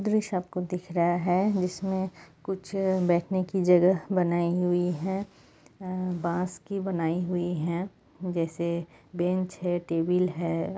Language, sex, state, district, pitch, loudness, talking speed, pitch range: Hindi, female, West Bengal, Jalpaiguri, 180 Hz, -28 LUFS, 135 wpm, 175-185 Hz